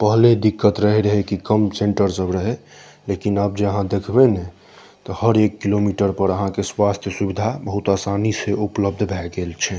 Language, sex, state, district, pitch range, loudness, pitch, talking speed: Maithili, male, Bihar, Saharsa, 100-105 Hz, -19 LUFS, 100 Hz, 185 wpm